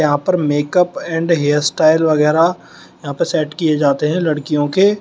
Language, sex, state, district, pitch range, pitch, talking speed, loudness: Hindi, male, Uttar Pradesh, Shamli, 150-170 Hz, 155 Hz, 165 wpm, -15 LUFS